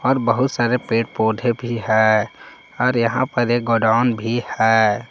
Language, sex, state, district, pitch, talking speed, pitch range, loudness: Hindi, male, Jharkhand, Palamu, 120 Hz, 165 wpm, 110-125 Hz, -18 LUFS